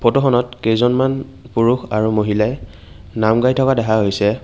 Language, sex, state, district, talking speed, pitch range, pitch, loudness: Assamese, male, Assam, Kamrup Metropolitan, 135 wpm, 105-125 Hz, 115 Hz, -17 LUFS